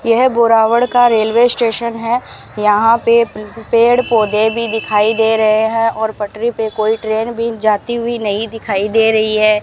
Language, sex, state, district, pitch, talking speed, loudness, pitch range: Hindi, female, Rajasthan, Bikaner, 225 Hz, 175 wpm, -14 LUFS, 215-235 Hz